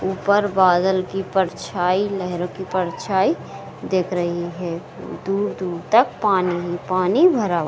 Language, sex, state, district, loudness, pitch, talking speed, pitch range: Hindi, female, Bihar, Saran, -20 LUFS, 185 Hz, 125 wpm, 175-195 Hz